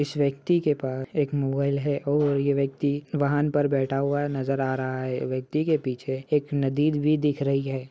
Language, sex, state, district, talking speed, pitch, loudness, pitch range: Hindi, male, Uttar Pradesh, Ghazipur, 205 wpm, 140 Hz, -25 LUFS, 135-145 Hz